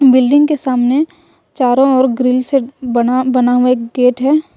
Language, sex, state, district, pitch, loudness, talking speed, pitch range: Hindi, female, Jharkhand, Ranchi, 255 Hz, -13 LUFS, 170 wpm, 250-275 Hz